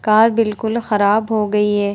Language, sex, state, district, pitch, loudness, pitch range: Hindi, female, Bihar, Vaishali, 215 Hz, -16 LUFS, 210-225 Hz